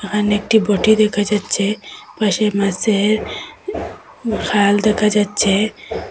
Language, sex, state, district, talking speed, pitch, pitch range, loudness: Bengali, female, Assam, Hailakandi, 100 wpm, 210 Hz, 205-215 Hz, -16 LUFS